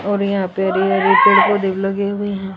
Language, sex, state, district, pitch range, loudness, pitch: Hindi, female, Haryana, Jhajjar, 190-200 Hz, -15 LUFS, 195 Hz